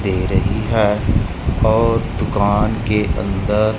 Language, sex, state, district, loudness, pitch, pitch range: Hindi, male, Punjab, Kapurthala, -17 LUFS, 105 Hz, 95-110 Hz